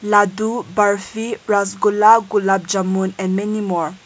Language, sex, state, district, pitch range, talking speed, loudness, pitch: English, female, Nagaland, Kohima, 190-215 Hz, 120 wpm, -17 LUFS, 205 Hz